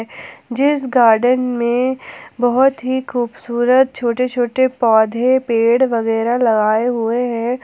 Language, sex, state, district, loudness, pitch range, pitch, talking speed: Hindi, female, Jharkhand, Palamu, -16 LUFS, 230-255 Hz, 245 Hz, 110 wpm